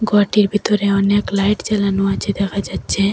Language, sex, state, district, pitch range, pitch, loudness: Bengali, female, Assam, Hailakandi, 195-205 Hz, 200 Hz, -17 LUFS